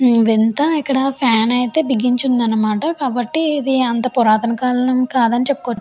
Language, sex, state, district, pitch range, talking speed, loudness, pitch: Telugu, female, Andhra Pradesh, Chittoor, 235-270 Hz, 145 wpm, -16 LUFS, 250 Hz